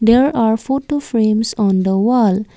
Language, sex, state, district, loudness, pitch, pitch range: English, female, Assam, Kamrup Metropolitan, -15 LUFS, 225 Hz, 210-250 Hz